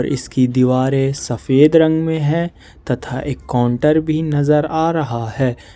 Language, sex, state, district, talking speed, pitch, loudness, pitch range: Hindi, male, Jharkhand, Ranchi, 145 wpm, 140 Hz, -17 LUFS, 125-155 Hz